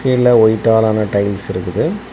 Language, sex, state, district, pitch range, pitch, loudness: Tamil, male, Tamil Nadu, Kanyakumari, 105-120 Hz, 110 Hz, -14 LUFS